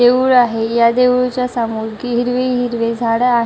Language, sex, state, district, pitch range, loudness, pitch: Marathi, male, Maharashtra, Chandrapur, 230-250 Hz, -15 LUFS, 245 Hz